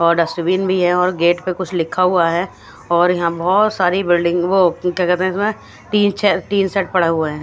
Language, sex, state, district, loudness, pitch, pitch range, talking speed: Hindi, female, Punjab, Fazilka, -16 LUFS, 180 Hz, 170-190 Hz, 200 wpm